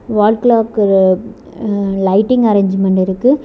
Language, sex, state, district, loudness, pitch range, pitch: Tamil, female, Tamil Nadu, Kanyakumari, -13 LUFS, 195-225 Hz, 205 Hz